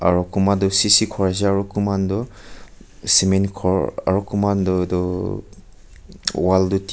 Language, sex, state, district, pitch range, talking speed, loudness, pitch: Nagamese, male, Nagaland, Kohima, 95-100 Hz, 165 wpm, -19 LUFS, 95 Hz